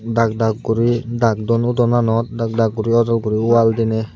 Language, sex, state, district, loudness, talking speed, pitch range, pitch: Chakma, male, Tripura, Unakoti, -17 LUFS, 190 wpm, 110-115 Hz, 115 Hz